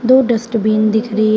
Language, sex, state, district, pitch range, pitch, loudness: Hindi, female, Uttar Pradesh, Shamli, 215-235 Hz, 220 Hz, -14 LUFS